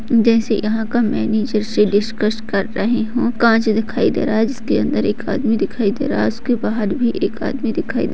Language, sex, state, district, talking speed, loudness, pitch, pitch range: Hindi, female, Bihar, Jamui, 220 wpm, -18 LUFS, 225 Hz, 220-240 Hz